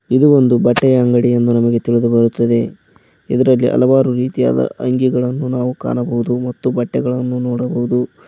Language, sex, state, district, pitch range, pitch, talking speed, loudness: Kannada, male, Karnataka, Koppal, 120-125 Hz, 125 Hz, 125 wpm, -15 LUFS